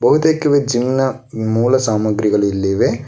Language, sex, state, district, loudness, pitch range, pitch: Kannada, male, Karnataka, Bangalore, -16 LUFS, 110-135 Hz, 120 Hz